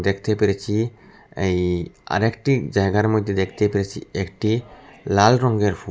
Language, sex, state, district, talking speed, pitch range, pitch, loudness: Bengali, male, Assam, Hailakandi, 120 wpm, 95-110 Hz, 105 Hz, -21 LUFS